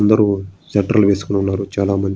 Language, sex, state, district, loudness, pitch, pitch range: Telugu, male, Andhra Pradesh, Srikakulam, -17 LUFS, 100 Hz, 95-100 Hz